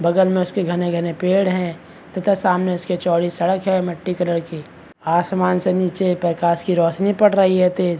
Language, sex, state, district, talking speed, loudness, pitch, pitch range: Hindi, male, Chhattisgarh, Bastar, 205 wpm, -19 LUFS, 180 Hz, 170-185 Hz